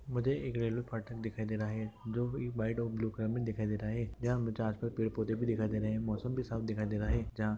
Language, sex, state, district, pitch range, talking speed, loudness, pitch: Hindi, male, Andhra Pradesh, Visakhapatnam, 110-115 Hz, 275 wpm, -36 LUFS, 110 Hz